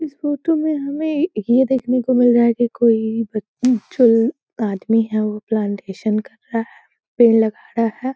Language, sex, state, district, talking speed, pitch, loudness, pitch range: Hindi, female, Bihar, Saran, 185 wpm, 235 Hz, -18 LUFS, 220-260 Hz